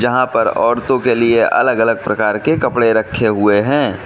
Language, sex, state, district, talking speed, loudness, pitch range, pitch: Hindi, male, Manipur, Imphal West, 190 wpm, -14 LUFS, 110-125 Hz, 115 Hz